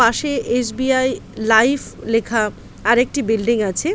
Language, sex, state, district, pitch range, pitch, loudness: Bengali, female, West Bengal, Paschim Medinipur, 225-265 Hz, 235 Hz, -18 LUFS